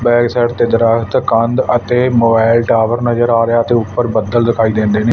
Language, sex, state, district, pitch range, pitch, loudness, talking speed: Punjabi, male, Punjab, Fazilka, 115-120 Hz, 115 Hz, -13 LUFS, 185 wpm